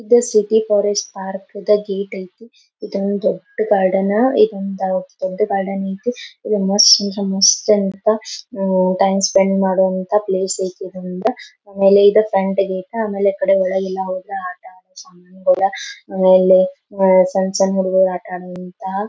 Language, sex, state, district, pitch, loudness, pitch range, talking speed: Kannada, female, Karnataka, Belgaum, 195 Hz, -16 LUFS, 190-210 Hz, 120 wpm